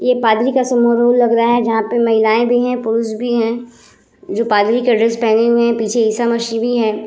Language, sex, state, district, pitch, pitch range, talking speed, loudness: Hindi, female, Bihar, Vaishali, 235 Hz, 225-240 Hz, 220 wpm, -15 LUFS